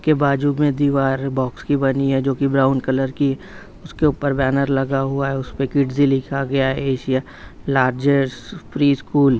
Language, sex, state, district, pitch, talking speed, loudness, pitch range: Hindi, male, Uttar Pradesh, Jalaun, 135 Hz, 180 wpm, -19 LUFS, 135-140 Hz